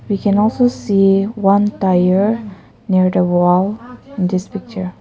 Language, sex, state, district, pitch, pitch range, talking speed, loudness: English, female, Nagaland, Kohima, 195 Hz, 185-210 Hz, 145 wpm, -15 LUFS